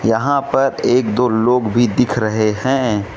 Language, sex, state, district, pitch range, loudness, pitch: Hindi, male, Mizoram, Aizawl, 110-130 Hz, -16 LUFS, 120 Hz